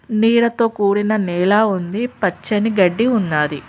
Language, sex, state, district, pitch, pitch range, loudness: Telugu, female, Telangana, Mahabubabad, 210 Hz, 180-225 Hz, -17 LUFS